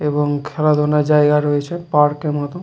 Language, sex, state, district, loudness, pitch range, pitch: Bengali, male, West Bengal, Jalpaiguri, -17 LUFS, 145-150 Hz, 150 Hz